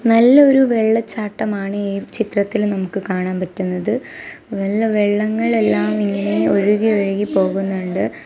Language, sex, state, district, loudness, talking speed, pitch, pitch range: Malayalam, female, Kerala, Kasaragod, -17 LUFS, 110 wpm, 205 Hz, 190-220 Hz